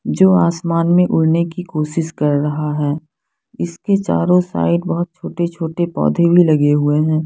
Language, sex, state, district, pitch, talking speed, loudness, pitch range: Hindi, female, Punjab, Fazilka, 160 Hz, 165 wpm, -16 LUFS, 145-170 Hz